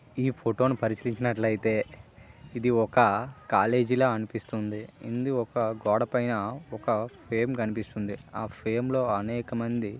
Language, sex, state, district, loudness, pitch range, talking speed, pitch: Telugu, male, Karnataka, Gulbarga, -28 LUFS, 110-125 Hz, 130 wpm, 115 Hz